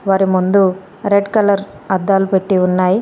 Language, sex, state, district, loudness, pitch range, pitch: Telugu, female, Telangana, Komaram Bheem, -15 LUFS, 185-200 Hz, 195 Hz